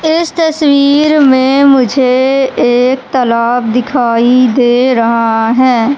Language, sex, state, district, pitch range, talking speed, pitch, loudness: Hindi, female, Madhya Pradesh, Katni, 240-280 Hz, 100 wpm, 255 Hz, -9 LUFS